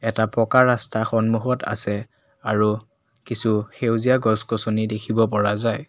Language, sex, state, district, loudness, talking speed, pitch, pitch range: Assamese, male, Assam, Kamrup Metropolitan, -21 LUFS, 135 wpm, 115 Hz, 110-115 Hz